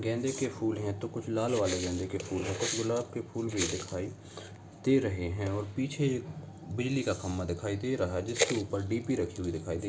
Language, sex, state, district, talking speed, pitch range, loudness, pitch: Hindi, male, Uttar Pradesh, Budaun, 235 wpm, 95-120 Hz, -32 LUFS, 105 Hz